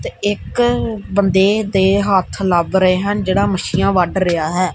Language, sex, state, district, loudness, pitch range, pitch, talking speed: Punjabi, male, Punjab, Kapurthala, -16 LUFS, 185-205 Hz, 190 Hz, 165 wpm